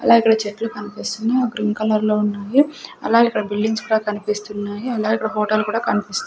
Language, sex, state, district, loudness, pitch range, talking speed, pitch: Telugu, female, Andhra Pradesh, Sri Satya Sai, -20 LUFS, 210-225 Hz, 155 wpm, 215 Hz